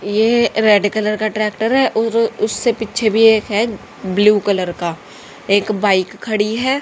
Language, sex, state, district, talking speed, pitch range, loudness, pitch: Hindi, female, Haryana, Charkhi Dadri, 165 wpm, 205-225 Hz, -16 LUFS, 215 Hz